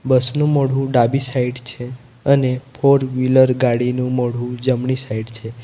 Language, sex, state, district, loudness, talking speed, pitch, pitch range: Gujarati, male, Gujarat, Valsad, -18 LUFS, 140 wpm, 125 Hz, 125-130 Hz